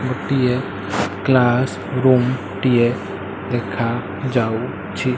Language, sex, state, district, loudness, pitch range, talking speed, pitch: Odia, male, Odisha, Malkangiri, -19 LUFS, 100-130 Hz, 70 wpm, 120 Hz